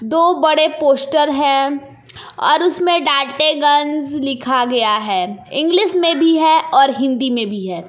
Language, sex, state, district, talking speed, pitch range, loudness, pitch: Hindi, female, Jharkhand, Palamu, 145 wpm, 255-315 Hz, -15 LUFS, 290 Hz